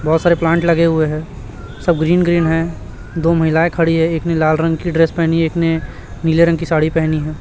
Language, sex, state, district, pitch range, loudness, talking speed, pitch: Hindi, male, Chhattisgarh, Raipur, 160-170 Hz, -15 LUFS, 235 wpm, 165 Hz